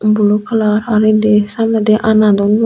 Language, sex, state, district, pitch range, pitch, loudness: Chakma, female, Tripura, Unakoti, 210-220 Hz, 215 Hz, -12 LUFS